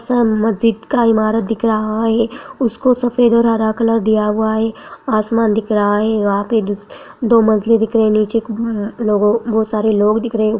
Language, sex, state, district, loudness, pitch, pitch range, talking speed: Hindi, female, Bihar, Bhagalpur, -15 LUFS, 220 Hz, 215-230 Hz, 200 wpm